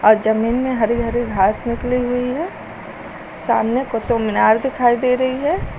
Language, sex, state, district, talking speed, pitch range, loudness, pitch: Hindi, female, Uttar Pradesh, Lucknow, 155 wpm, 225-255 Hz, -18 LUFS, 240 Hz